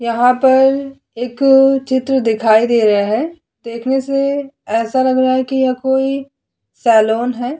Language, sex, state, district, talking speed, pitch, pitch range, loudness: Hindi, female, Uttar Pradesh, Hamirpur, 150 wpm, 260 Hz, 235-270 Hz, -14 LUFS